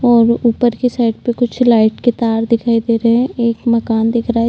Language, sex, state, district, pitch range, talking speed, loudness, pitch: Hindi, female, Uttar Pradesh, Budaun, 230-240 Hz, 240 wpm, -14 LUFS, 235 Hz